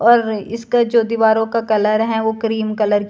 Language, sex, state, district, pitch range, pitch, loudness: Hindi, female, Himachal Pradesh, Shimla, 215-230 Hz, 220 Hz, -17 LUFS